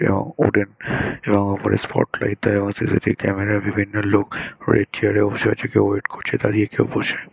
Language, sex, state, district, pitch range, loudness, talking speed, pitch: Bengali, male, West Bengal, Dakshin Dinajpur, 100-105 Hz, -20 LUFS, 230 wpm, 105 Hz